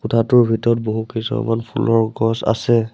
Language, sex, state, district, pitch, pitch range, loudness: Assamese, male, Assam, Sonitpur, 115 Hz, 110-115 Hz, -18 LUFS